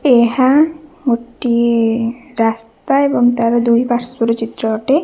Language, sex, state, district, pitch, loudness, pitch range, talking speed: Odia, female, Odisha, Khordha, 240 Hz, -15 LUFS, 230-265 Hz, 95 wpm